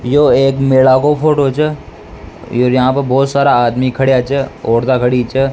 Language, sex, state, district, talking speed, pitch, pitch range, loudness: Rajasthani, male, Rajasthan, Nagaur, 175 wpm, 130 Hz, 125-140 Hz, -12 LUFS